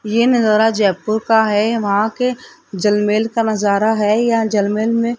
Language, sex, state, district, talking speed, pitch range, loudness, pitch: Hindi, female, Rajasthan, Jaipur, 160 wpm, 210-230 Hz, -16 LUFS, 220 Hz